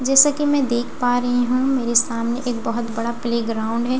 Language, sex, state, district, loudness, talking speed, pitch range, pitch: Hindi, female, Bihar, Katihar, -20 LUFS, 270 wpm, 235-255 Hz, 245 Hz